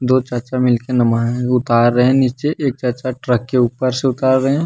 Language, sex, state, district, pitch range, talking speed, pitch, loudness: Hindi, male, Jharkhand, Deoghar, 120-130 Hz, 220 wpm, 125 Hz, -16 LUFS